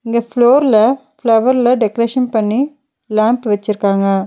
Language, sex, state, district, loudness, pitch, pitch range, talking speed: Tamil, female, Tamil Nadu, Nilgiris, -14 LUFS, 230 Hz, 215-255 Hz, 100 wpm